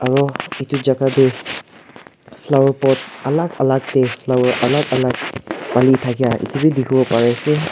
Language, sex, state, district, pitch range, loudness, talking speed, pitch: Nagamese, male, Nagaland, Kohima, 125-140 Hz, -17 LUFS, 150 wpm, 130 Hz